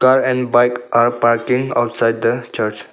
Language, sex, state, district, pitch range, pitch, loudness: English, male, Arunachal Pradesh, Longding, 115-125 Hz, 120 Hz, -16 LUFS